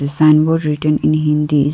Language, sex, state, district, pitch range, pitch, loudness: English, female, Arunachal Pradesh, Lower Dibang Valley, 150-155 Hz, 150 Hz, -14 LUFS